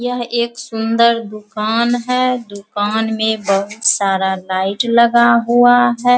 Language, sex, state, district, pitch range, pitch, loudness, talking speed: Hindi, female, Bihar, Saharsa, 210-240 Hz, 230 Hz, -15 LUFS, 125 wpm